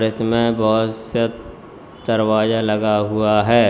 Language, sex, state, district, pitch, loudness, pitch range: Hindi, male, Uttar Pradesh, Lalitpur, 110 Hz, -18 LUFS, 110-115 Hz